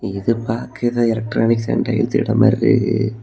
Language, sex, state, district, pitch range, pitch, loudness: Tamil, male, Tamil Nadu, Kanyakumari, 115-120 Hz, 115 Hz, -18 LUFS